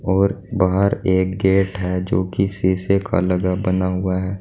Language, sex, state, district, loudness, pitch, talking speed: Hindi, male, Uttar Pradesh, Saharanpur, -19 LUFS, 95 Hz, 175 wpm